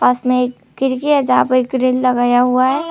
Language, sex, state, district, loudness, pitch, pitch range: Hindi, female, Tripura, Unakoti, -15 LUFS, 255 Hz, 250-265 Hz